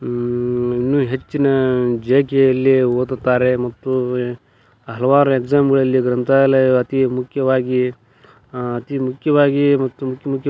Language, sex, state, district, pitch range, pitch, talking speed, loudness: Kannada, male, Karnataka, Belgaum, 125-135 Hz, 130 Hz, 95 wpm, -17 LUFS